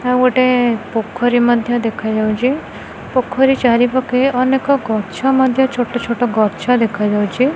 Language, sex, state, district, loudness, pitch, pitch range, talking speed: Odia, female, Odisha, Khordha, -15 LUFS, 245 Hz, 225-255 Hz, 135 wpm